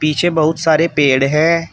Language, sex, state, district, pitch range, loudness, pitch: Hindi, male, Uttar Pradesh, Shamli, 150-165 Hz, -14 LUFS, 155 Hz